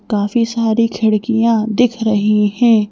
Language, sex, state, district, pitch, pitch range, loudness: Hindi, female, Madhya Pradesh, Bhopal, 220 Hz, 210-230 Hz, -15 LUFS